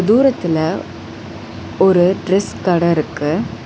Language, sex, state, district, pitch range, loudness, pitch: Tamil, female, Tamil Nadu, Chennai, 115-185 Hz, -16 LUFS, 160 Hz